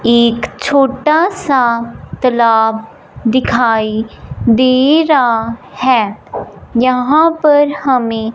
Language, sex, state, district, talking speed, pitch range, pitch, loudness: Hindi, male, Punjab, Fazilka, 80 wpm, 230-285 Hz, 250 Hz, -12 LUFS